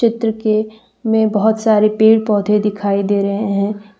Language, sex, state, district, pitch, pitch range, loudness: Hindi, female, Jharkhand, Deoghar, 215 Hz, 205-220 Hz, -15 LUFS